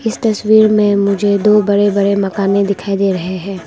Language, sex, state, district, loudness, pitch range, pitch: Hindi, female, Arunachal Pradesh, Longding, -13 LUFS, 195-210 Hz, 200 Hz